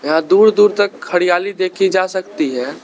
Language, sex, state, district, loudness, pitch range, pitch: Hindi, male, Arunachal Pradesh, Lower Dibang Valley, -15 LUFS, 175-200 Hz, 185 Hz